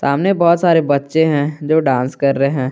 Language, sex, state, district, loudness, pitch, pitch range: Hindi, male, Jharkhand, Garhwa, -15 LUFS, 145 Hz, 140-160 Hz